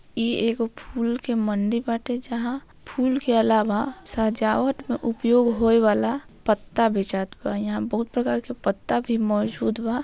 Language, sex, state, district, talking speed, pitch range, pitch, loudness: Bhojpuri, female, Bihar, Saran, 155 wpm, 215-240 Hz, 230 Hz, -24 LUFS